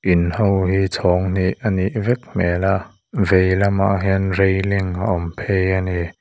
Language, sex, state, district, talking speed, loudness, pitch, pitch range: Mizo, male, Mizoram, Aizawl, 185 wpm, -19 LUFS, 95 Hz, 95-100 Hz